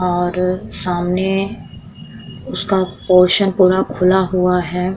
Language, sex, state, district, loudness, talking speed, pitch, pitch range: Hindi, female, Uttar Pradesh, Muzaffarnagar, -16 LUFS, 95 wpm, 185 Hz, 180-190 Hz